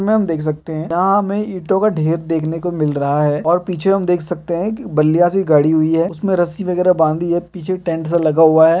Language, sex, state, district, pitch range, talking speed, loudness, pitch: Hindi, male, Chhattisgarh, Kabirdham, 160-185 Hz, 260 wpm, -16 LUFS, 170 Hz